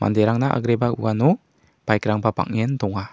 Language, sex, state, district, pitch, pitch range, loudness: Garo, male, Meghalaya, South Garo Hills, 110 Hz, 105-120 Hz, -21 LUFS